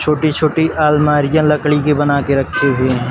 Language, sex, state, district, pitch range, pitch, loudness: Hindi, male, Uttar Pradesh, Varanasi, 140-155 Hz, 150 Hz, -14 LUFS